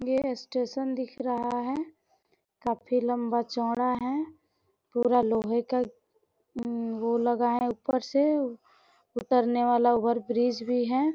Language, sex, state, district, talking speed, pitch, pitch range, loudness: Hindi, female, Bihar, Gopalganj, 130 wpm, 245 Hz, 235-260 Hz, -28 LUFS